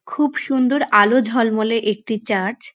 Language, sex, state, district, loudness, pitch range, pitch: Bengali, female, West Bengal, North 24 Parganas, -18 LUFS, 215-260 Hz, 230 Hz